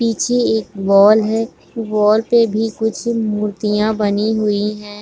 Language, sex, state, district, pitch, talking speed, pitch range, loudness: Hindi, female, Jharkhand, Sahebganj, 215 Hz, 145 wpm, 210-225 Hz, -16 LUFS